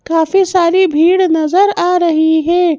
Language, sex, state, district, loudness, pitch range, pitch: Hindi, female, Madhya Pradesh, Bhopal, -12 LUFS, 320-370 Hz, 345 Hz